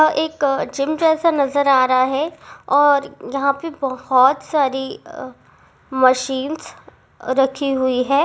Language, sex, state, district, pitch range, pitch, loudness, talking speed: Hindi, female, Rajasthan, Churu, 265-295 Hz, 275 Hz, -18 LUFS, 125 wpm